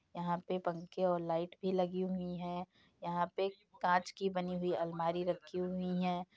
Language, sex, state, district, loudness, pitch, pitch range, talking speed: Hindi, female, Uttar Pradesh, Jyotiba Phule Nagar, -38 LUFS, 180 Hz, 175-185 Hz, 180 wpm